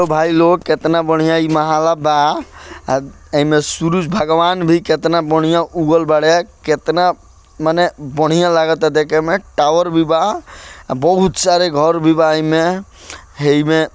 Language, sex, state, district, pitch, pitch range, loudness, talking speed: Bhojpuri, male, Bihar, Gopalganj, 160 Hz, 155-170 Hz, -14 LUFS, 140 wpm